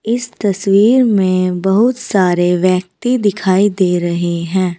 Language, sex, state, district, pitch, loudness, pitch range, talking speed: Hindi, female, Uttar Pradesh, Saharanpur, 190 Hz, -14 LUFS, 180-215 Hz, 125 wpm